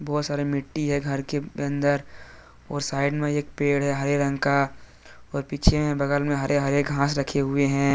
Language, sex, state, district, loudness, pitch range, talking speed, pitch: Hindi, male, Jharkhand, Deoghar, -25 LUFS, 140-145 Hz, 205 wpm, 140 Hz